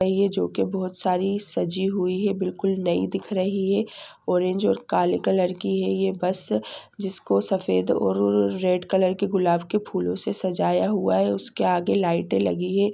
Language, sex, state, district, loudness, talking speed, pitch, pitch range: Hindi, female, Jharkhand, Sahebganj, -24 LUFS, 190 wpm, 185 Hz, 165-195 Hz